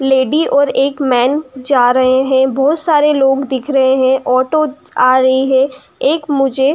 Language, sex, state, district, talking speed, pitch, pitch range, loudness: Hindi, female, Uttar Pradesh, Jyotiba Phule Nagar, 180 wpm, 270 Hz, 260-285 Hz, -13 LUFS